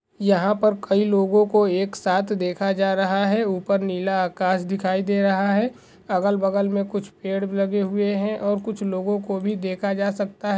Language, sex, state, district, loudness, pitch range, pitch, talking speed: Hindi, male, Goa, North and South Goa, -22 LUFS, 195-205 Hz, 200 Hz, 195 wpm